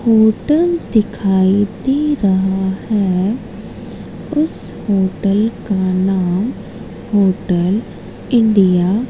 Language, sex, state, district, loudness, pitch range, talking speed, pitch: Hindi, female, Madhya Pradesh, Katni, -16 LUFS, 190-225 Hz, 80 wpm, 205 Hz